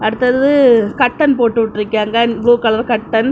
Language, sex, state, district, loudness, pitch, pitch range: Tamil, female, Tamil Nadu, Kanyakumari, -13 LUFS, 235 Hz, 220-250 Hz